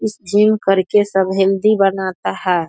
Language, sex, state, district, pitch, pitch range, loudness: Hindi, female, Bihar, Saharsa, 195 Hz, 190-210 Hz, -15 LUFS